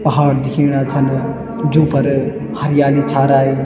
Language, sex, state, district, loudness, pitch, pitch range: Garhwali, male, Uttarakhand, Tehri Garhwal, -15 LUFS, 140 Hz, 135-145 Hz